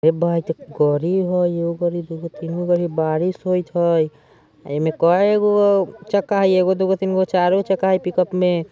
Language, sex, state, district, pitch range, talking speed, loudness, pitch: Bajjika, male, Bihar, Vaishali, 165-190 Hz, 220 wpm, -19 LUFS, 175 Hz